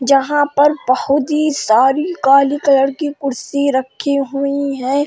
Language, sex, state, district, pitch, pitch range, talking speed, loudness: Hindi, female, Uttar Pradesh, Hamirpur, 280 Hz, 270-290 Hz, 130 wpm, -15 LUFS